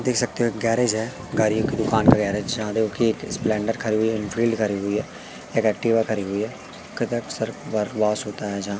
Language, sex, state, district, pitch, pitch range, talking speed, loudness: Hindi, male, Madhya Pradesh, Katni, 110 Hz, 105-115 Hz, 205 wpm, -23 LUFS